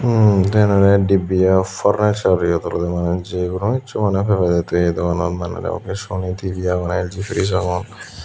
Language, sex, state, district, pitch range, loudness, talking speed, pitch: Chakma, male, Tripura, Dhalai, 90-100 Hz, -18 LUFS, 140 wpm, 95 Hz